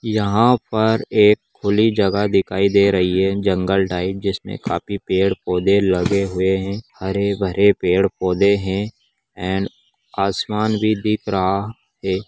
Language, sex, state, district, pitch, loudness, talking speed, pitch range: Magahi, male, Bihar, Gaya, 100 Hz, -18 LUFS, 135 wpm, 95-105 Hz